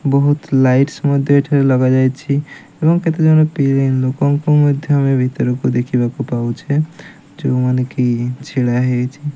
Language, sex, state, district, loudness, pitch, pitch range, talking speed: Odia, male, Odisha, Malkangiri, -15 LUFS, 135 Hz, 125-145 Hz, 115 wpm